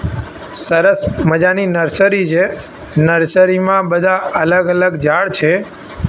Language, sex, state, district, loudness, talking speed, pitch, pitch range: Gujarati, male, Gujarat, Gandhinagar, -13 LUFS, 110 wpm, 185 Hz, 165-190 Hz